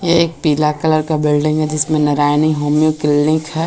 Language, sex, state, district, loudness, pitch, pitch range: Hindi, female, Bihar, Jahanabad, -15 LUFS, 155 Hz, 150-155 Hz